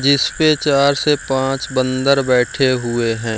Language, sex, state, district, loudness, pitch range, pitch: Hindi, male, Bihar, Jamui, -16 LUFS, 125-140 Hz, 135 Hz